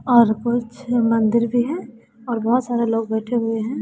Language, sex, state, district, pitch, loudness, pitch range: Hindi, female, Bihar, West Champaran, 235 Hz, -20 LUFS, 225-240 Hz